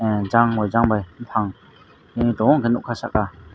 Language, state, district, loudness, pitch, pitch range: Kokborok, Tripura, Dhalai, -20 LUFS, 110 Hz, 105-120 Hz